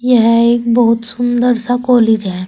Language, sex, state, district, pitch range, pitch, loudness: Hindi, female, Uttar Pradesh, Saharanpur, 230-245 Hz, 235 Hz, -12 LUFS